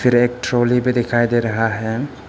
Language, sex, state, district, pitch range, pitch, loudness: Hindi, male, Arunachal Pradesh, Papum Pare, 115-125 Hz, 120 Hz, -18 LUFS